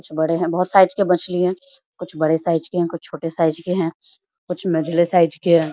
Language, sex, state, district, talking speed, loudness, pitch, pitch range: Hindi, female, Bihar, Samastipur, 240 wpm, -19 LUFS, 170 Hz, 165-185 Hz